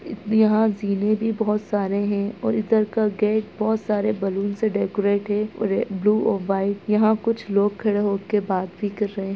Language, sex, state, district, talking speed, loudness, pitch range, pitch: Hindi, male, Bihar, Muzaffarpur, 180 wpm, -22 LUFS, 200-215 Hz, 210 Hz